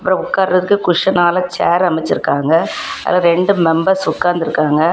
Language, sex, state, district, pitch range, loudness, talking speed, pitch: Tamil, female, Tamil Nadu, Kanyakumari, 165-185 Hz, -14 LUFS, 110 wpm, 175 Hz